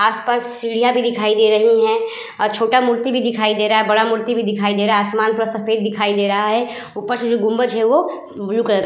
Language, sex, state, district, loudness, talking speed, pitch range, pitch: Hindi, female, Uttar Pradesh, Budaun, -17 LUFS, 245 wpm, 215-240 Hz, 225 Hz